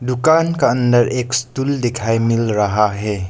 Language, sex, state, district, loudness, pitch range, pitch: Hindi, male, Arunachal Pradesh, Lower Dibang Valley, -16 LUFS, 110-130 Hz, 120 Hz